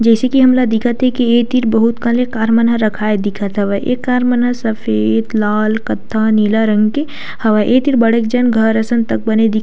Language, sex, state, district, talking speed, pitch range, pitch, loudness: Chhattisgarhi, female, Chhattisgarh, Sukma, 230 wpm, 215-245 Hz, 225 Hz, -14 LUFS